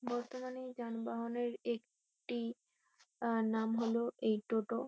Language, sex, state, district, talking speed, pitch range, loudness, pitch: Bengali, female, West Bengal, Kolkata, 100 wpm, 230-240 Hz, -38 LUFS, 235 Hz